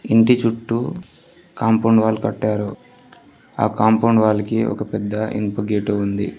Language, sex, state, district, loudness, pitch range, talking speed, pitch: Telugu, male, Telangana, Mahabubabad, -19 LUFS, 105-115 Hz, 120 wpm, 110 Hz